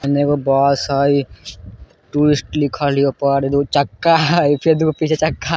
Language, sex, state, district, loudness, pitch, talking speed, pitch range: Hindi, male, Bihar, Muzaffarpur, -16 LUFS, 140 Hz, 195 wpm, 140-155 Hz